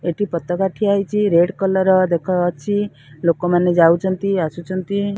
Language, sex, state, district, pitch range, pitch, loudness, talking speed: Odia, female, Odisha, Sambalpur, 170-200 Hz, 185 Hz, -18 LUFS, 150 wpm